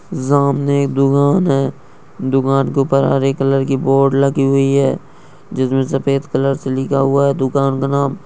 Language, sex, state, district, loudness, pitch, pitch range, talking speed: Hindi, male, Bihar, Lakhisarai, -15 LUFS, 135 Hz, 135-140 Hz, 175 wpm